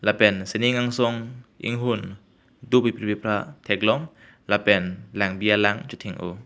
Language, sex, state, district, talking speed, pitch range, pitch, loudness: Karbi, male, Assam, Karbi Anglong, 120 wpm, 100-120 Hz, 105 Hz, -23 LUFS